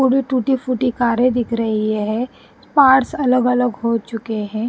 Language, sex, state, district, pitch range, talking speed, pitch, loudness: Hindi, female, Punjab, Pathankot, 225-255 Hz, 165 wpm, 245 Hz, -17 LUFS